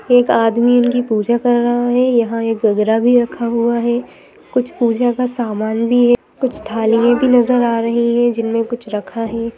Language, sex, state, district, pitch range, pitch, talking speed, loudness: Hindi, female, Madhya Pradesh, Bhopal, 230-245 Hz, 235 Hz, 195 wpm, -15 LUFS